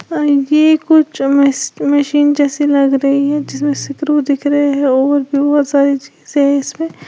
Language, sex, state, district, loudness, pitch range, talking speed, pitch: Hindi, female, Uttar Pradesh, Lalitpur, -13 LUFS, 280-295 Hz, 180 wpm, 285 Hz